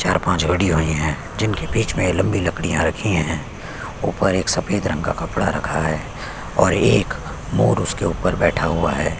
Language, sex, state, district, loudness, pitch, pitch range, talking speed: Hindi, male, Chhattisgarh, Sukma, -20 LUFS, 85 Hz, 80-95 Hz, 185 wpm